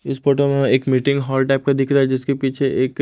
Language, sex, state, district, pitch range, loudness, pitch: Hindi, male, Odisha, Malkangiri, 135-140 Hz, -18 LUFS, 135 Hz